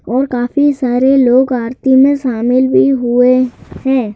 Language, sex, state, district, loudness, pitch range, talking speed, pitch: Hindi, male, Madhya Pradesh, Bhopal, -12 LUFS, 245-265 Hz, 145 wpm, 255 Hz